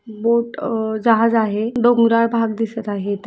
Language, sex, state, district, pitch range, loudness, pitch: Marathi, female, Maharashtra, Sindhudurg, 220-230 Hz, -18 LUFS, 225 Hz